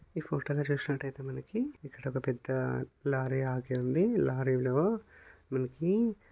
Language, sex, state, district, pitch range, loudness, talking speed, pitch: Telugu, male, Telangana, Nalgonda, 130-160 Hz, -32 LUFS, 115 wpm, 135 Hz